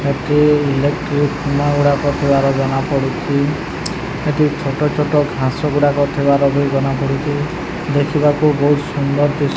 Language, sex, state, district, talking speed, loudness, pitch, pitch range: Odia, male, Odisha, Sambalpur, 105 wpm, -16 LUFS, 145 Hz, 140-150 Hz